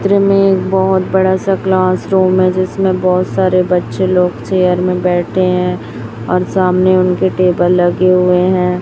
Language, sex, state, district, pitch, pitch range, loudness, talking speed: Hindi, female, Chhattisgarh, Raipur, 185 Hz, 180-190 Hz, -12 LUFS, 170 wpm